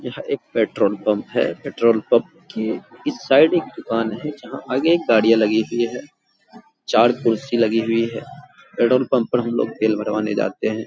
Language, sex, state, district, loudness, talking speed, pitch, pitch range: Hindi, male, Bihar, Araria, -20 LUFS, 175 wpm, 115 Hz, 110-120 Hz